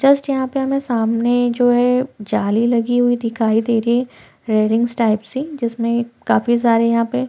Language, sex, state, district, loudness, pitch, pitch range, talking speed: Hindi, female, Chhattisgarh, Korba, -17 LUFS, 235 Hz, 230-250 Hz, 190 wpm